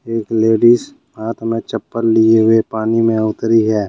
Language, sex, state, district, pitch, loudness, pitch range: Hindi, male, Jharkhand, Deoghar, 115 Hz, -14 LUFS, 110-115 Hz